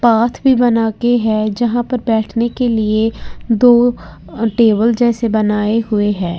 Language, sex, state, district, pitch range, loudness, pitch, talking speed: Hindi, female, Uttar Pradesh, Lalitpur, 220-240 Hz, -14 LUFS, 230 Hz, 160 wpm